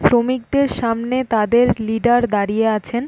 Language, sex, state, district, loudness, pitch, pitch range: Bengali, female, West Bengal, North 24 Parganas, -17 LUFS, 235 Hz, 220-250 Hz